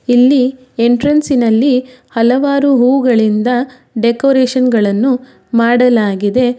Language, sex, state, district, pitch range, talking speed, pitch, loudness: Kannada, female, Karnataka, Bangalore, 235-260 Hz, 75 wpm, 250 Hz, -12 LUFS